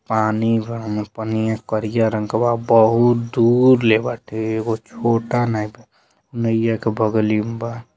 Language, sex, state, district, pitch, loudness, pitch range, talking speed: Bhojpuri, male, Uttar Pradesh, Deoria, 115 Hz, -19 LUFS, 110-115 Hz, 160 wpm